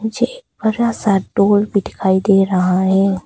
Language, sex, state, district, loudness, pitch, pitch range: Hindi, female, Arunachal Pradesh, Papum Pare, -16 LUFS, 200 Hz, 190-220 Hz